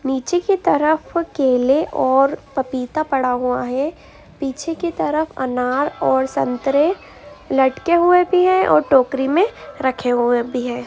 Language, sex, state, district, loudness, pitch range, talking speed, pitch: Hindi, female, Andhra Pradesh, Anantapur, -18 LUFS, 250-320 Hz, 145 wpm, 270 Hz